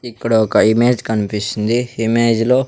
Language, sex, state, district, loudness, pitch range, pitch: Telugu, male, Andhra Pradesh, Sri Satya Sai, -16 LUFS, 110-120 Hz, 115 Hz